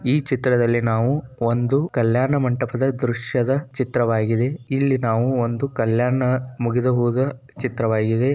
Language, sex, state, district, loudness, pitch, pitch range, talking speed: Kannada, male, Karnataka, Bijapur, -21 LUFS, 125 Hz, 120-135 Hz, 85 wpm